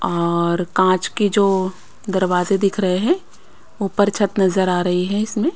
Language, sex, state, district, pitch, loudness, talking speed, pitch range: Hindi, female, Haryana, Rohtak, 190 Hz, -18 LUFS, 160 wpm, 180-205 Hz